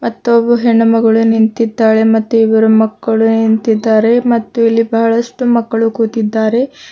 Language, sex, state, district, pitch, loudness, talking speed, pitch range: Kannada, female, Karnataka, Bidar, 225 Hz, -11 LUFS, 120 wpm, 220-230 Hz